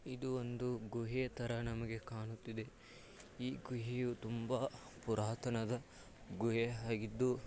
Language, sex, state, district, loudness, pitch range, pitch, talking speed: Kannada, male, Karnataka, Dharwad, -42 LUFS, 115-125 Hz, 120 Hz, 95 wpm